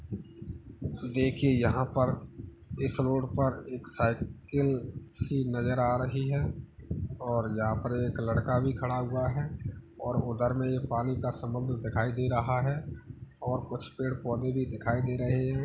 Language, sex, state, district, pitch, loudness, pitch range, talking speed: Hindi, male, Uttar Pradesh, Hamirpur, 125 Hz, -31 LUFS, 120-130 Hz, 155 wpm